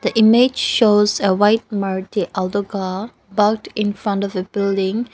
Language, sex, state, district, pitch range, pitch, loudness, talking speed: English, female, Nagaland, Dimapur, 195-220 Hz, 205 Hz, -18 LUFS, 165 wpm